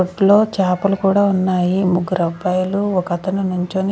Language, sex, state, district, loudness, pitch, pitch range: Telugu, female, Andhra Pradesh, Sri Satya Sai, -17 LUFS, 185 Hz, 180-195 Hz